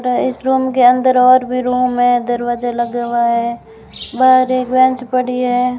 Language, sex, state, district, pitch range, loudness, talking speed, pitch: Hindi, female, Rajasthan, Bikaner, 240-255 Hz, -14 LUFS, 185 wpm, 250 Hz